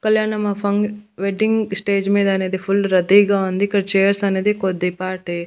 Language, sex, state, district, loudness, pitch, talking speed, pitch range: Telugu, female, Andhra Pradesh, Annamaya, -18 LUFS, 200 Hz, 130 wpm, 190-205 Hz